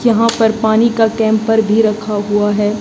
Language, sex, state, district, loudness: Hindi, male, Haryana, Jhajjar, -13 LUFS